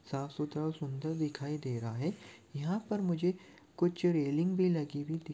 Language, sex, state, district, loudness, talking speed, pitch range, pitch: Hindi, male, Chhattisgarh, Raigarh, -35 LUFS, 190 wpm, 145-175 Hz, 155 Hz